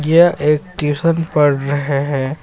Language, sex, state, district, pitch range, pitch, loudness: Hindi, male, Jharkhand, Ranchi, 140-165 Hz, 150 Hz, -16 LUFS